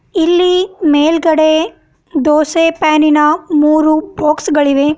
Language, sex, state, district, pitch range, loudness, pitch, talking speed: Kannada, female, Karnataka, Bidar, 300-330 Hz, -12 LUFS, 310 Hz, 95 wpm